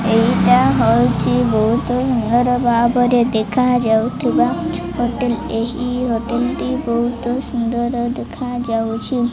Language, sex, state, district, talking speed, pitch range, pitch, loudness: Odia, female, Odisha, Malkangiri, 90 wpm, 230-245 Hz, 240 Hz, -17 LUFS